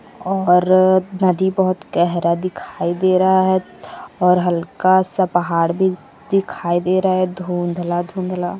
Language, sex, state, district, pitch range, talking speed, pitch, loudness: Hindi, female, Chhattisgarh, Kabirdham, 175-185 Hz, 130 wpm, 185 Hz, -17 LUFS